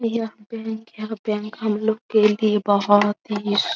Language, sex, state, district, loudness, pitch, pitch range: Hindi, female, Bihar, Araria, -21 LUFS, 215 Hz, 210-220 Hz